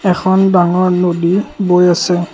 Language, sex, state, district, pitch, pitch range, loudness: Assamese, male, Assam, Kamrup Metropolitan, 180 Hz, 175-185 Hz, -12 LUFS